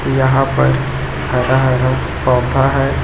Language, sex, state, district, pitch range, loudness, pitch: Hindi, male, Chhattisgarh, Raipur, 125-135 Hz, -15 LUFS, 130 Hz